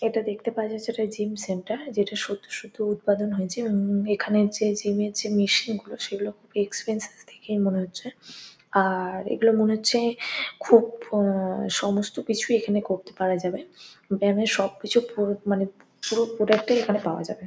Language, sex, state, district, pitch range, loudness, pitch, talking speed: Bengali, female, West Bengal, Kolkata, 200-220 Hz, -25 LUFS, 210 Hz, 170 wpm